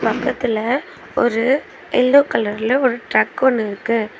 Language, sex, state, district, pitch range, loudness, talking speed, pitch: Tamil, female, Tamil Nadu, Chennai, 220-260 Hz, -18 LUFS, 100 wpm, 240 Hz